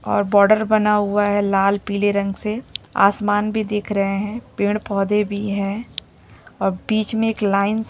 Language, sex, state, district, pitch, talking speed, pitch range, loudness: Hindi, female, Bihar, Jahanabad, 205 Hz, 175 wpm, 200-215 Hz, -19 LUFS